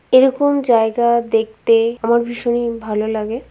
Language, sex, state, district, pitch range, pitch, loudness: Bengali, female, West Bengal, Kolkata, 225-240 Hz, 235 Hz, -16 LUFS